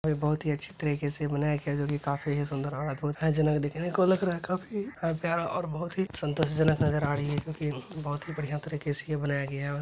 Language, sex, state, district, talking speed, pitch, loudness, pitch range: Hindi, male, Bihar, Purnia, 275 wpm, 150 Hz, -30 LUFS, 145-160 Hz